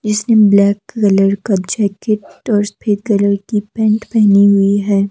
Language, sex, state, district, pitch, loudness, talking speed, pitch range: Hindi, female, Himachal Pradesh, Shimla, 205 Hz, -13 LUFS, 130 wpm, 200-215 Hz